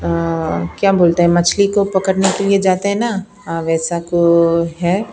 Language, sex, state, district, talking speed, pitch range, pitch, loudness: Hindi, female, Bihar, Patna, 210 wpm, 170-195 Hz, 175 Hz, -15 LUFS